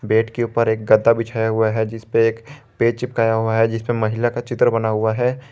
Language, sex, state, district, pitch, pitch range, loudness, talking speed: Hindi, male, Jharkhand, Garhwa, 115 Hz, 110-120 Hz, -19 LUFS, 230 wpm